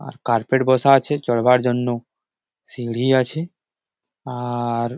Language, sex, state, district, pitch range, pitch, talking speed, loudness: Bengali, male, West Bengal, Malda, 120-130 Hz, 125 Hz, 120 wpm, -19 LUFS